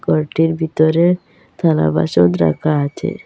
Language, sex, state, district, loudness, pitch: Bengali, female, Assam, Hailakandi, -16 LUFS, 155 Hz